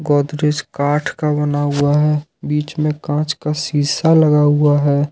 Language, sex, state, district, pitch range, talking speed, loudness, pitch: Hindi, male, Jharkhand, Ranchi, 145-150 Hz, 165 wpm, -16 LUFS, 150 Hz